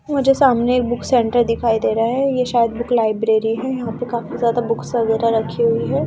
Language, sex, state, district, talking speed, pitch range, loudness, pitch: Hindi, female, Delhi, New Delhi, 240 wpm, 230-245 Hz, -18 LUFS, 235 Hz